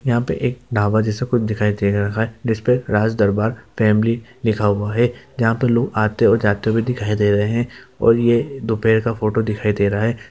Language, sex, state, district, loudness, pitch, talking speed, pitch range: Hindi, male, Bihar, Jamui, -18 LUFS, 110 Hz, 215 wpm, 105-120 Hz